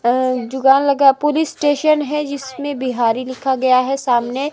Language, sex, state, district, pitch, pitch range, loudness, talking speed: Hindi, female, Himachal Pradesh, Shimla, 270 Hz, 255-290 Hz, -17 LUFS, 160 wpm